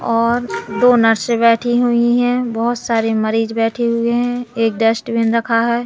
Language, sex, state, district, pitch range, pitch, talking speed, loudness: Hindi, female, Madhya Pradesh, Katni, 225-240 Hz, 230 Hz, 165 wpm, -16 LUFS